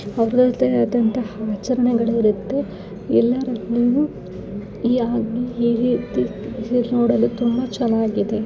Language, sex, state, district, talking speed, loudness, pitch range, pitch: Kannada, female, Karnataka, Bellary, 80 wpm, -20 LUFS, 220-245 Hz, 235 Hz